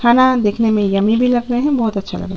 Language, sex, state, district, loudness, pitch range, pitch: Hindi, female, Chhattisgarh, Sukma, -15 LUFS, 205-245 Hz, 230 Hz